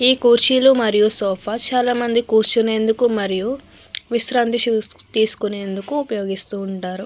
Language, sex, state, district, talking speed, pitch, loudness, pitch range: Telugu, female, Andhra Pradesh, Krishna, 95 wpm, 225 Hz, -16 LUFS, 205-240 Hz